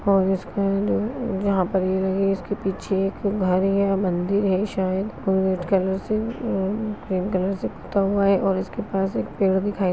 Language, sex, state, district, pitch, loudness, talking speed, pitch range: Hindi, female, Chhattisgarh, Raigarh, 195 Hz, -23 LUFS, 145 wpm, 190-200 Hz